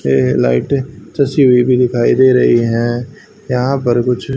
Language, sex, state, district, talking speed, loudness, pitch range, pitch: Hindi, male, Haryana, Charkhi Dadri, 150 wpm, -13 LUFS, 120-130 Hz, 125 Hz